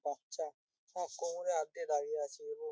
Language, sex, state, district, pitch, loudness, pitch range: Bengali, male, West Bengal, North 24 Parganas, 170 Hz, -40 LUFS, 150-230 Hz